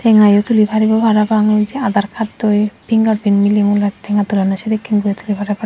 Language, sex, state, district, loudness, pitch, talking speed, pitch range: Chakma, female, Tripura, Dhalai, -14 LUFS, 210 Hz, 210 wpm, 205-220 Hz